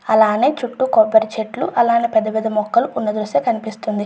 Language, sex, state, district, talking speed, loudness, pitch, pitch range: Telugu, female, Andhra Pradesh, Chittoor, 135 wpm, -17 LUFS, 220 Hz, 215-240 Hz